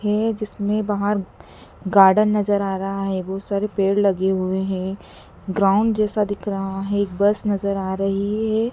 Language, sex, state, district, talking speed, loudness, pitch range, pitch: Hindi, female, Madhya Pradesh, Dhar, 170 wpm, -21 LUFS, 195-210 Hz, 200 Hz